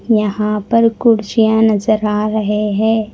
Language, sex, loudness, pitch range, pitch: Hindi, female, -14 LUFS, 210-220 Hz, 215 Hz